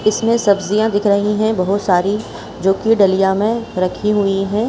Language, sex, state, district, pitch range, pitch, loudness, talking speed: Hindi, female, Chhattisgarh, Bilaspur, 195-215 Hz, 205 Hz, -16 LUFS, 180 wpm